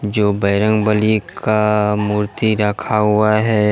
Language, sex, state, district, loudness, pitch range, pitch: Hindi, male, Jharkhand, Deoghar, -16 LUFS, 105-110 Hz, 105 Hz